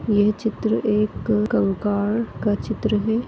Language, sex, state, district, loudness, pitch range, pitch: Hindi, female, Maharashtra, Nagpur, -22 LUFS, 205-220 Hz, 215 Hz